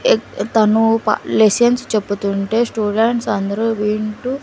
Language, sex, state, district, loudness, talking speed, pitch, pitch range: Telugu, female, Andhra Pradesh, Sri Satya Sai, -17 LUFS, 95 wpm, 220 Hz, 210-230 Hz